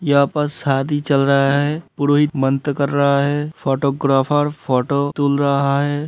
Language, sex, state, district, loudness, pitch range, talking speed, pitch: Hindi, male, Uttar Pradesh, Hamirpur, -18 LUFS, 140-145 Hz, 160 wpm, 140 Hz